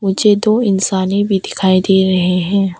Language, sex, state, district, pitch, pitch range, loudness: Hindi, female, Arunachal Pradesh, Papum Pare, 195 Hz, 190-200 Hz, -14 LUFS